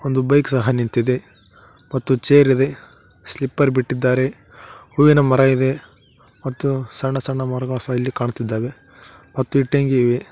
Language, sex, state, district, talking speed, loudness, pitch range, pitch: Kannada, male, Karnataka, Koppal, 130 wpm, -18 LUFS, 125-135 Hz, 130 Hz